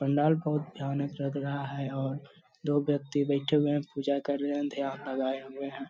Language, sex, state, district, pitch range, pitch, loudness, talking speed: Hindi, male, Bihar, Gaya, 140-145 Hz, 140 Hz, -31 LUFS, 205 wpm